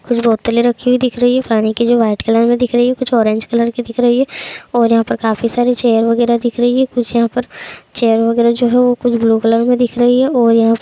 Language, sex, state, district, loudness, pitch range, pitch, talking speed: Hindi, female, Uttar Pradesh, Jalaun, -13 LUFS, 230-245 Hz, 235 Hz, 285 wpm